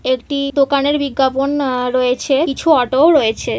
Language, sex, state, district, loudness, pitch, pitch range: Bengali, female, West Bengal, Kolkata, -15 LUFS, 275 Hz, 255-285 Hz